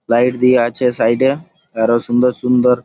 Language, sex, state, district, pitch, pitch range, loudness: Bengali, male, West Bengal, Malda, 125 Hz, 120-125 Hz, -15 LUFS